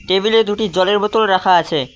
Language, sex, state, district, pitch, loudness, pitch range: Bengali, male, West Bengal, Cooch Behar, 205 Hz, -15 LUFS, 185-220 Hz